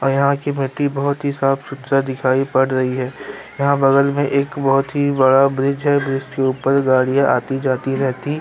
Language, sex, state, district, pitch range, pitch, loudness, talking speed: Hindi, male, Chhattisgarh, Sukma, 135-140 Hz, 135 Hz, -17 LUFS, 205 wpm